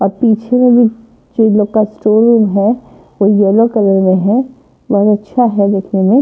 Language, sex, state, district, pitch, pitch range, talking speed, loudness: Hindi, female, Punjab, Pathankot, 215 Hz, 200-235 Hz, 175 wpm, -11 LUFS